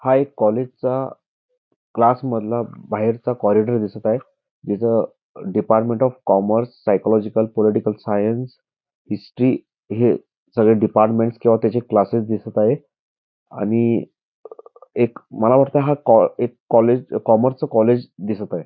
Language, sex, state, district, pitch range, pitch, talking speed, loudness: Marathi, male, Karnataka, Belgaum, 110-125 Hz, 115 Hz, 110 wpm, -19 LUFS